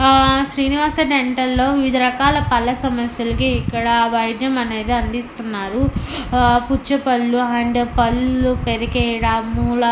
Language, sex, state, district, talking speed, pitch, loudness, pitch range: Telugu, female, Andhra Pradesh, Anantapur, 115 wpm, 245 Hz, -18 LUFS, 235-265 Hz